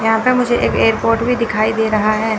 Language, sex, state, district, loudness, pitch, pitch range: Hindi, female, Chandigarh, Chandigarh, -15 LUFS, 220 Hz, 215-235 Hz